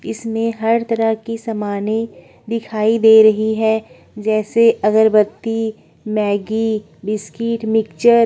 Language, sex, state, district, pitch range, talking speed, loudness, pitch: Hindi, female, Uttar Pradesh, Budaun, 215-225 Hz, 110 wpm, -17 LUFS, 220 Hz